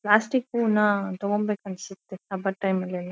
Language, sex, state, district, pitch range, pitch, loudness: Kannada, female, Karnataka, Shimoga, 190-210 Hz, 200 Hz, -25 LUFS